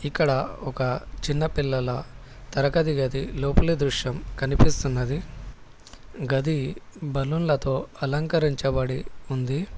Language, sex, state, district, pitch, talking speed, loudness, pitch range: Telugu, male, Telangana, Hyderabad, 135 Hz, 85 wpm, -26 LUFS, 130-150 Hz